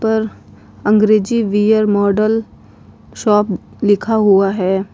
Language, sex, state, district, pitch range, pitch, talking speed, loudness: Hindi, female, Uttar Pradesh, Lalitpur, 200-220 Hz, 210 Hz, 95 wpm, -15 LUFS